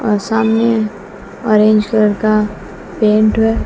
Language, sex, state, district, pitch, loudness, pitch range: Hindi, female, Bihar, West Champaran, 215 Hz, -14 LUFS, 210-220 Hz